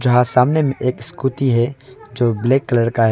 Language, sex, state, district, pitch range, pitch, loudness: Hindi, male, Arunachal Pradesh, Longding, 120-135 Hz, 125 Hz, -17 LUFS